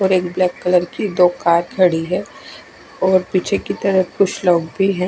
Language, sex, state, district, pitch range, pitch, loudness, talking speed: Hindi, female, Odisha, Khordha, 180-190 Hz, 185 Hz, -17 LUFS, 200 wpm